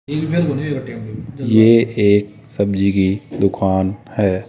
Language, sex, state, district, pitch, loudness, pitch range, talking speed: Hindi, male, Rajasthan, Jaipur, 110 Hz, -17 LUFS, 100-135 Hz, 80 wpm